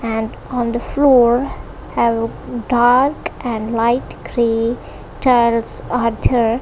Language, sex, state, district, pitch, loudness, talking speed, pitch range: English, female, Punjab, Kapurthala, 235 Hz, -17 LUFS, 120 wpm, 230-245 Hz